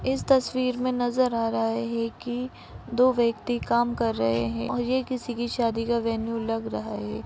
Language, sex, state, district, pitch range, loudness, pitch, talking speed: Hindi, female, Uttar Pradesh, Ghazipur, 225-250 Hz, -26 LUFS, 235 Hz, 200 wpm